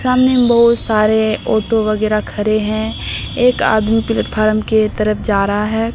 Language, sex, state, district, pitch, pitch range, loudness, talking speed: Hindi, female, Bihar, Katihar, 220 Hz, 215-225 Hz, -15 LUFS, 160 wpm